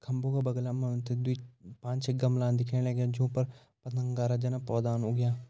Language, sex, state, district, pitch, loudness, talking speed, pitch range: Garhwali, male, Uttarakhand, Uttarkashi, 125 Hz, -31 LUFS, 165 wpm, 120-130 Hz